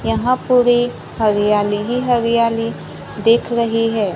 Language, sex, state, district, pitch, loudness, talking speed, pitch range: Hindi, female, Maharashtra, Gondia, 230 Hz, -16 LUFS, 115 wpm, 215-240 Hz